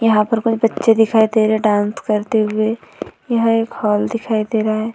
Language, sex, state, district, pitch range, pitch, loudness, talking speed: Hindi, female, Uttar Pradesh, Budaun, 215-225 Hz, 220 Hz, -16 LUFS, 205 wpm